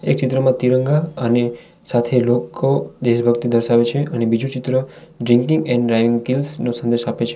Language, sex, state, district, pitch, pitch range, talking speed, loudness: Gujarati, male, Gujarat, Valsad, 120 Hz, 120-130 Hz, 165 wpm, -18 LUFS